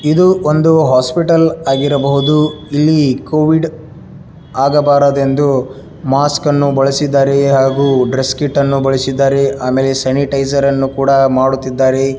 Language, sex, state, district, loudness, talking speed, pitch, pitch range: Kannada, male, Karnataka, Dharwad, -12 LUFS, 105 wpm, 140 Hz, 135-150 Hz